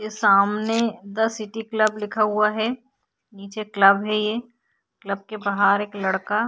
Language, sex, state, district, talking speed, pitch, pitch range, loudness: Hindi, female, Bihar, Vaishali, 165 wpm, 215 Hz, 200-225 Hz, -22 LUFS